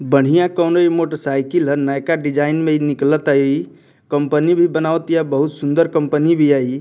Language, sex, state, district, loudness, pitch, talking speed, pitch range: Bhojpuri, male, Bihar, Muzaffarpur, -16 LUFS, 150 Hz, 160 wpm, 140-165 Hz